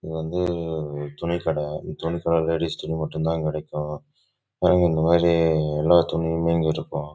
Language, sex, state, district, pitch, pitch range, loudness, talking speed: Tamil, male, Karnataka, Chamarajanagar, 80 Hz, 80-85 Hz, -23 LUFS, 60 wpm